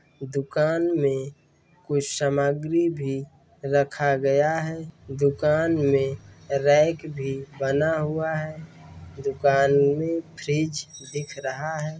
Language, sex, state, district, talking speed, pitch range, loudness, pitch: Hindi, male, Bihar, Darbhanga, 105 wpm, 140-155 Hz, -24 LUFS, 145 Hz